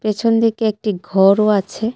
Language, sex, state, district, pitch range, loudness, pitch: Bengali, female, Tripura, West Tripura, 200-225 Hz, -16 LUFS, 215 Hz